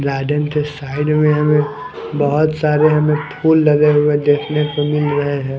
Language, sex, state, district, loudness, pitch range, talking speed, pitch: Hindi, male, Chandigarh, Chandigarh, -15 LUFS, 145-150 Hz, 170 wpm, 150 Hz